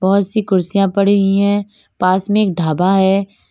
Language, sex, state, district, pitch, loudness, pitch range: Hindi, female, Uttar Pradesh, Lalitpur, 195 Hz, -15 LUFS, 190-200 Hz